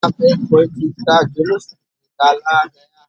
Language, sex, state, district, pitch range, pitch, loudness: Hindi, male, Bihar, Darbhanga, 145-170 Hz, 155 Hz, -15 LUFS